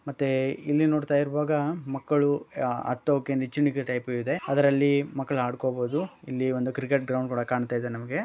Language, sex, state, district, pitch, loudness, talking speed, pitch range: Kannada, male, Karnataka, Bellary, 140 Hz, -27 LUFS, 145 wpm, 130-145 Hz